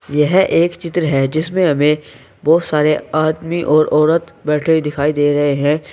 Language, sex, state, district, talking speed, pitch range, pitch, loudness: Hindi, male, Uttar Pradesh, Saharanpur, 170 wpm, 150-165 Hz, 155 Hz, -15 LUFS